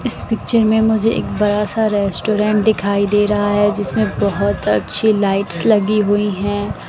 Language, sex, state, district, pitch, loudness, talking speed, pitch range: Hindi, female, Bihar, West Champaran, 205 Hz, -16 LUFS, 165 wpm, 205-220 Hz